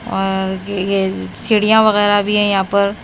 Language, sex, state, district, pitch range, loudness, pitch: Hindi, female, Himachal Pradesh, Shimla, 190-205 Hz, -15 LUFS, 200 Hz